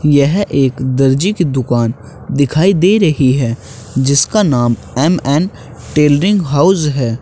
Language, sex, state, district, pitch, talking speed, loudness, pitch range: Hindi, male, Uttar Pradesh, Shamli, 140 Hz, 125 wpm, -13 LUFS, 130-165 Hz